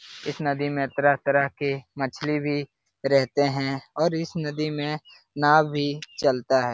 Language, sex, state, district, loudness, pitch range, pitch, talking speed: Hindi, male, Uttar Pradesh, Jalaun, -25 LUFS, 135-150 Hz, 145 Hz, 150 wpm